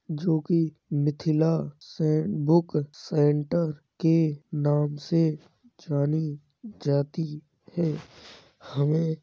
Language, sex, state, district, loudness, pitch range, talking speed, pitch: Hindi, male, Uttar Pradesh, Jalaun, -26 LUFS, 150-165 Hz, 90 wpm, 155 Hz